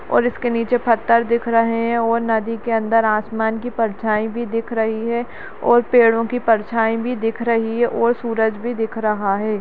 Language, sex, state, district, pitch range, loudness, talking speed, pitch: Kumaoni, female, Uttarakhand, Uttarkashi, 225-235 Hz, -19 LUFS, 200 wpm, 230 Hz